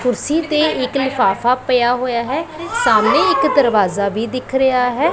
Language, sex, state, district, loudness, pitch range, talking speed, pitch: Punjabi, female, Punjab, Pathankot, -16 LUFS, 240-300 Hz, 165 wpm, 255 Hz